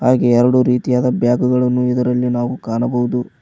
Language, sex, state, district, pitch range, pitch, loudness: Kannada, male, Karnataka, Koppal, 120-125 Hz, 125 Hz, -16 LUFS